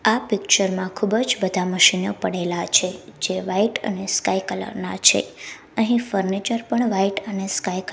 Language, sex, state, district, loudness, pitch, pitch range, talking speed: Gujarati, female, Gujarat, Gandhinagar, -21 LUFS, 195 Hz, 185-220 Hz, 165 wpm